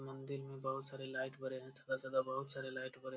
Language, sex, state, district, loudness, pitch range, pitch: Hindi, male, Bihar, Jamui, -41 LUFS, 130-135 Hz, 130 Hz